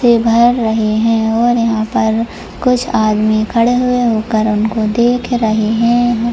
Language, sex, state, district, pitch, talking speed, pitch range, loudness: Hindi, female, Jharkhand, Jamtara, 230 Hz, 150 wpm, 220-240 Hz, -13 LUFS